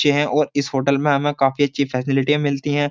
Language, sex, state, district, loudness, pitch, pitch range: Hindi, male, Uttar Pradesh, Jyotiba Phule Nagar, -19 LUFS, 145 Hz, 135-145 Hz